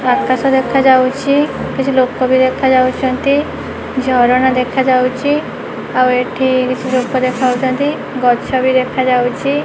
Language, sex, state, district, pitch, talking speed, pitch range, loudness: Odia, female, Odisha, Khordha, 255 Hz, 105 wpm, 255-265 Hz, -14 LUFS